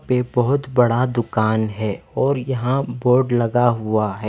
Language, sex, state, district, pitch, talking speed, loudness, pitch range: Hindi, male, Himachal Pradesh, Shimla, 120 Hz, 155 wpm, -19 LUFS, 110-130 Hz